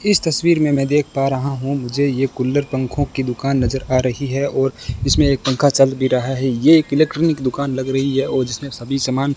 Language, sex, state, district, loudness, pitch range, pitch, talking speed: Hindi, male, Rajasthan, Bikaner, -18 LUFS, 130-140 Hz, 135 Hz, 245 wpm